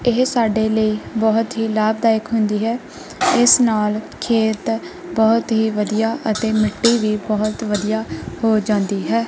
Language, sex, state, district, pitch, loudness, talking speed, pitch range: Punjabi, female, Punjab, Kapurthala, 220 Hz, -18 LUFS, 140 wpm, 215-230 Hz